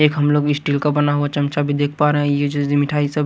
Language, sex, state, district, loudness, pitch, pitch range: Hindi, male, Haryana, Rohtak, -18 LUFS, 145 Hz, 145-150 Hz